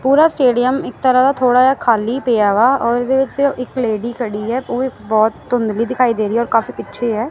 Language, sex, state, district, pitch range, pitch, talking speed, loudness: Punjabi, female, Punjab, Kapurthala, 230-260 Hz, 245 Hz, 235 wpm, -16 LUFS